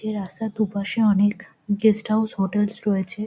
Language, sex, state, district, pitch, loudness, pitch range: Bengali, female, West Bengal, Jhargram, 210 Hz, -22 LUFS, 200-220 Hz